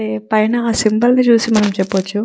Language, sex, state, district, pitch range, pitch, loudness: Telugu, female, Telangana, Nalgonda, 195-235 Hz, 215 Hz, -14 LUFS